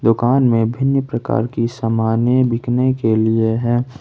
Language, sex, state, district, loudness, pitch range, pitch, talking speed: Hindi, male, Jharkhand, Ranchi, -17 LUFS, 115-125 Hz, 120 Hz, 150 wpm